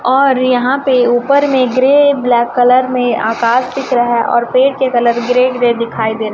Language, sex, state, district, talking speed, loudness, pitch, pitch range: Hindi, male, Chhattisgarh, Raipur, 220 wpm, -12 LUFS, 250 Hz, 240-260 Hz